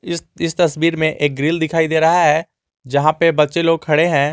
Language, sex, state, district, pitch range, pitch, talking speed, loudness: Hindi, male, Jharkhand, Garhwa, 150-165 Hz, 160 Hz, 220 wpm, -16 LUFS